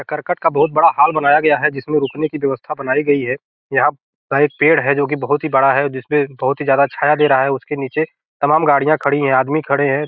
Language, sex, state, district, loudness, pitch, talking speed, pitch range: Hindi, male, Bihar, Gopalganj, -16 LUFS, 145 Hz, 270 wpm, 135-150 Hz